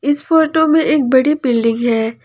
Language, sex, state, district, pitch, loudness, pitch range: Hindi, female, Jharkhand, Palamu, 275 Hz, -14 LUFS, 235-315 Hz